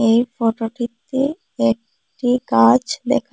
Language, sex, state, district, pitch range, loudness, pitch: Bengali, female, Assam, Hailakandi, 225-265 Hz, -19 LUFS, 235 Hz